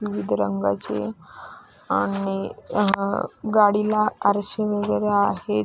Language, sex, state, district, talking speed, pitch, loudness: Marathi, female, Maharashtra, Solapur, 75 wpm, 195 Hz, -23 LUFS